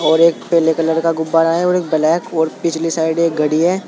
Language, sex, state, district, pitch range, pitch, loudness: Hindi, male, Uttar Pradesh, Saharanpur, 160-170 Hz, 165 Hz, -15 LUFS